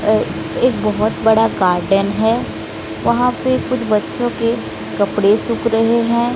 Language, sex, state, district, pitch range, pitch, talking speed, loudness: Hindi, female, Odisha, Sambalpur, 200-235 Hz, 225 Hz, 130 wpm, -16 LUFS